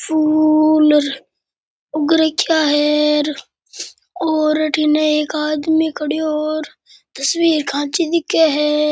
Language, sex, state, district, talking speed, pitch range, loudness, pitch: Rajasthani, male, Rajasthan, Nagaur, 95 wpm, 300-315 Hz, -16 LUFS, 305 Hz